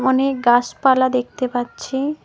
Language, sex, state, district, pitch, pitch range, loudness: Bengali, female, West Bengal, Cooch Behar, 260 Hz, 245-265 Hz, -18 LUFS